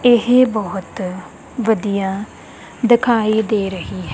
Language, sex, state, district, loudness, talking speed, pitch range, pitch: Punjabi, female, Punjab, Kapurthala, -17 LUFS, 100 wpm, 190-235 Hz, 215 Hz